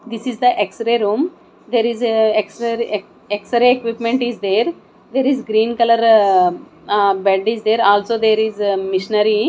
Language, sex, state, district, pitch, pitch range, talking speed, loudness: English, female, Odisha, Nuapada, 225 Hz, 205-235 Hz, 175 wpm, -17 LUFS